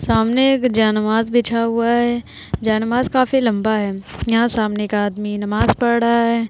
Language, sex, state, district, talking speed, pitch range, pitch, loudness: Hindi, female, Bihar, Vaishali, 165 wpm, 215-240 Hz, 230 Hz, -17 LUFS